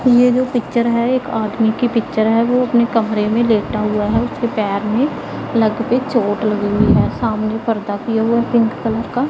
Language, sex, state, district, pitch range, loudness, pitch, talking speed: Hindi, female, Punjab, Pathankot, 215-240 Hz, -16 LUFS, 230 Hz, 195 wpm